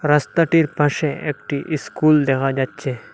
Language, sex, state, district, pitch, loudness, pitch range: Bengali, male, Assam, Hailakandi, 150 Hz, -19 LUFS, 135-155 Hz